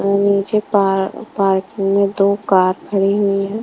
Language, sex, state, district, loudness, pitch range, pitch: Hindi, female, Punjab, Kapurthala, -16 LUFS, 195-200 Hz, 200 Hz